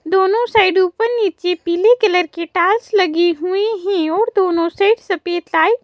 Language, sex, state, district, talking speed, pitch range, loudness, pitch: Hindi, female, Madhya Pradesh, Bhopal, 165 wpm, 345-430 Hz, -16 LUFS, 375 Hz